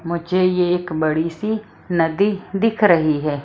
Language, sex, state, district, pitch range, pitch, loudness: Hindi, female, Maharashtra, Mumbai Suburban, 160-200 Hz, 175 Hz, -19 LUFS